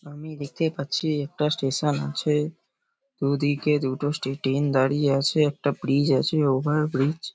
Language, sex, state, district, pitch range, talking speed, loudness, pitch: Bengali, male, West Bengal, Paschim Medinipur, 140-155 Hz, 140 wpm, -24 LUFS, 145 Hz